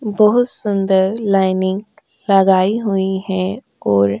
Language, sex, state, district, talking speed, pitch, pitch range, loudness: Hindi, female, Uttar Pradesh, Jyotiba Phule Nagar, 115 wpm, 195 Hz, 190-210 Hz, -16 LUFS